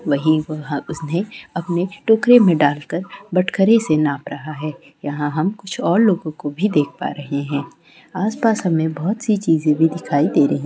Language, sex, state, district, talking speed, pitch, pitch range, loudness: Hindi, female, West Bengal, Dakshin Dinajpur, 185 wpm, 165 Hz, 150-200 Hz, -19 LUFS